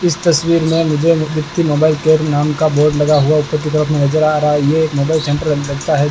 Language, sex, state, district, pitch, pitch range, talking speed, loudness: Hindi, male, Rajasthan, Bikaner, 155 Hz, 150-155 Hz, 245 wpm, -14 LUFS